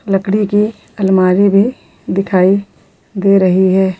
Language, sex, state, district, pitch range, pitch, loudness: Hindi, female, Bihar, Katihar, 190-200 Hz, 195 Hz, -13 LUFS